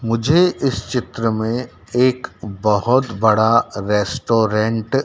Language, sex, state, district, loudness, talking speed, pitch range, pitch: Hindi, male, Madhya Pradesh, Dhar, -18 LUFS, 105 wpm, 105-125 Hz, 115 Hz